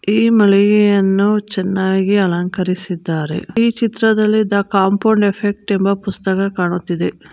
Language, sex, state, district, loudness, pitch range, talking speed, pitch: Kannada, female, Karnataka, Bangalore, -15 LUFS, 190-210 Hz, 100 wpm, 200 Hz